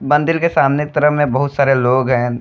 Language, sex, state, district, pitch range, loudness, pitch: Bhojpuri, male, Uttar Pradesh, Deoria, 130-150 Hz, -15 LUFS, 140 Hz